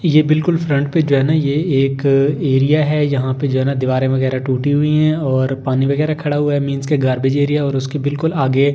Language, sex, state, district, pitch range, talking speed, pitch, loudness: Hindi, male, Delhi, New Delhi, 135-150 Hz, 240 wpm, 140 Hz, -16 LUFS